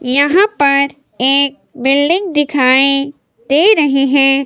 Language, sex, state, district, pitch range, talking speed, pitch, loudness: Hindi, female, Himachal Pradesh, Shimla, 270-295 Hz, 105 wpm, 280 Hz, -12 LUFS